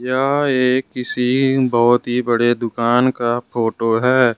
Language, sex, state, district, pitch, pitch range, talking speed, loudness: Hindi, male, Jharkhand, Ranchi, 125 Hz, 120-130 Hz, 135 wpm, -17 LUFS